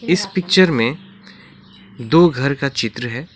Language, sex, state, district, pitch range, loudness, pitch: Hindi, male, West Bengal, Alipurduar, 120-185 Hz, -16 LUFS, 155 Hz